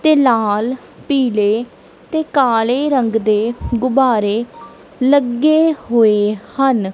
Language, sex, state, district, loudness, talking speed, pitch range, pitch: Punjabi, female, Punjab, Kapurthala, -15 LUFS, 95 wpm, 225-270 Hz, 240 Hz